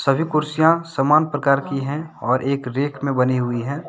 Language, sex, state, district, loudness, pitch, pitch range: Hindi, male, Jharkhand, Deoghar, -20 LUFS, 140 Hz, 135-150 Hz